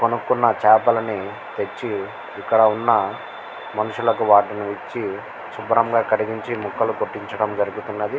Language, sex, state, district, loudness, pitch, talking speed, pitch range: Telugu, male, Andhra Pradesh, Guntur, -21 LUFS, 110 Hz, 105 wpm, 105-115 Hz